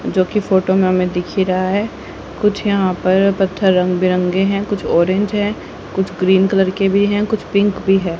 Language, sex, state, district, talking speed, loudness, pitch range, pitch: Hindi, female, Haryana, Rohtak, 205 wpm, -16 LUFS, 185-200 Hz, 190 Hz